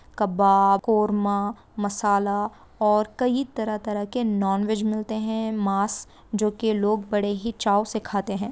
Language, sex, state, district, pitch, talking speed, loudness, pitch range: Hindi, female, Andhra Pradesh, Guntur, 210 Hz, 150 wpm, -24 LUFS, 205-220 Hz